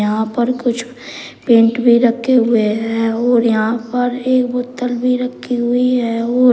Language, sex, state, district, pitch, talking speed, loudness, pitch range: Hindi, male, Uttar Pradesh, Shamli, 240 Hz, 165 wpm, -15 LUFS, 230-250 Hz